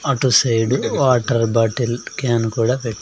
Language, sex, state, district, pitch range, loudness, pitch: Telugu, male, Andhra Pradesh, Sri Satya Sai, 115-130 Hz, -18 LUFS, 120 Hz